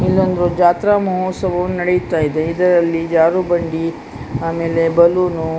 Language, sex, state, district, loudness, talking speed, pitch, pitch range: Kannada, female, Karnataka, Dakshina Kannada, -16 LUFS, 105 wpm, 175 Hz, 165-180 Hz